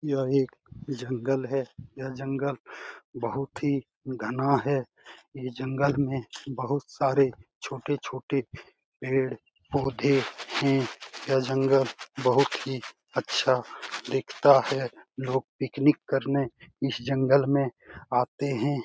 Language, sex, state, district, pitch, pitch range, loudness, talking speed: Hindi, male, Bihar, Jamui, 135 Hz, 130-140 Hz, -27 LUFS, 105 wpm